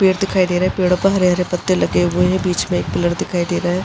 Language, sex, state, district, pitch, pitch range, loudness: Hindi, female, Uttar Pradesh, Jalaun, 180 Hz, 175-185 Hz, -17 LUFS